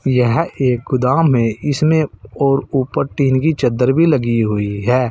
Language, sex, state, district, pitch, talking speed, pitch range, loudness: Hindi, male, Uttar Pradesh, Saharanpur, 130 Hz, 165 wpm, 120-145 Hz, -16 LUFS